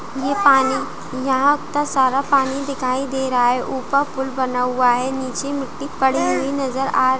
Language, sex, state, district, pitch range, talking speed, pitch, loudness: Hindi, female, Jharkhand, Jamtara, 260-275 Hz, 185 wpm, 265 Hz, -19 LUFS